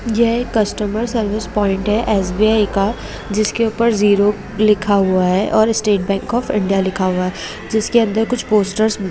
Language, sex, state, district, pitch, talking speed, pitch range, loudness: Hindi, female, Bihar, Madhepura, 210 Hz, 180 wpm, 200-220 Hz, -16 LUFS